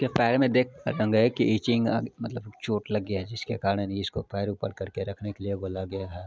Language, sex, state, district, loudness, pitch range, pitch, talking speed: Hindi, male, Bihar, Araria, -28 LUFS, 100-115 Hz, 105 Hz, 230 wpm